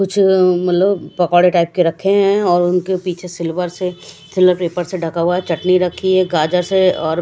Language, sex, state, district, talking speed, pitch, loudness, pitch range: Hindi, female, Punjab, Kapurthala, 200 wpm, 180 Hz, -15 LUFS, 175-185 Hz